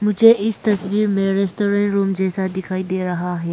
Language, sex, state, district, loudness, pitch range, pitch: Hindi, female, Arunachal Pradesh, Lower Dibang Valley, -19 LUFS, 185-210 Hz, 195 Hz